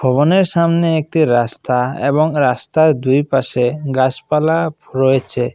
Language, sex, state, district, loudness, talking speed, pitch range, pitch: Bengali, male, Assam, Kamrup Metropolitan, -15 LUFS, 120 wpm, 130-155 Hz, 140 Hz